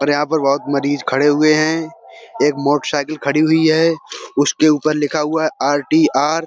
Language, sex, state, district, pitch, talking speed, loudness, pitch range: Hindi, male, Uttar Pradesh, Budaun, 150 Hz, 195 wpm, -16 LUFS, 145-155 Hz